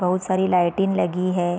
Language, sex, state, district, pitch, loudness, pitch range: Hindi, female, Bihar, Darbhanga, 180 Hz, -21 LUFS, 180-185 Hz